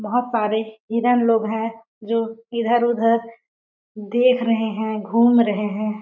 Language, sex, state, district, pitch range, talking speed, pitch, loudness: Hindi, female, Chhattisgarh, Balrampur, 220-235 Hz, 140 wpm, 230 Hz, -20 LUFS